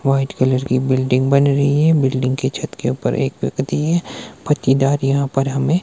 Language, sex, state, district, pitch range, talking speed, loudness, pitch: Hindi, male, Himachal Pradesh, Shimla, 130-140 Hz, 195 wpm, -17 LUFS, 135 Hz